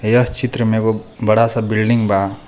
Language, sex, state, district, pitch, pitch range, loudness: Bhojpuri, male, Jharkhand, Palamu, 110 Hz, 110-115 Hz, -16 LUFS